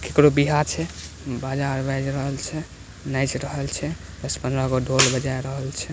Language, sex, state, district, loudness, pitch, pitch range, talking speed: Hindi, male, Bihar, Samastipur, -23 LUFS, 135 Hz, 130-140 Hz, 170 wpm